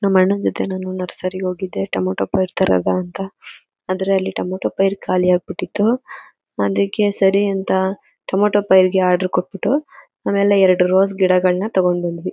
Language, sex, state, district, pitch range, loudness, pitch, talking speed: Kannada, female, Karnataka, Mysore, 180-195 Hz, -18 LUFS, 185 Hz, 135 wpm